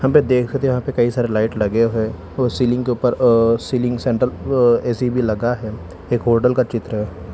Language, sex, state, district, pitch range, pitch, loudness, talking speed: Hindi, male, Telangana, Hyderabad, 115-125 Hz, 120 Hz, -18 LUFS, 190 wpm